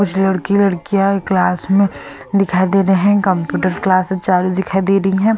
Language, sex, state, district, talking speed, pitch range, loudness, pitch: Hindi, female, Goa, North and South Goa, 180 wpm, 185-195 Hz, -15 LUFS, 190 Hz